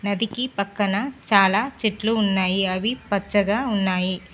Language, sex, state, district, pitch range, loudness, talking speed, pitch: Telugu, female, Telangana, Mahabubabad, 195-220 Hz, -22 LUFS, 110 wpm, 205 Hz